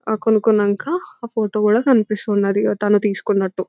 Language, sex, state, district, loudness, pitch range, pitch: Telugu, female, Telangana, Nalgonda, -18 LUFS, 205-220 Hz, 215 Hz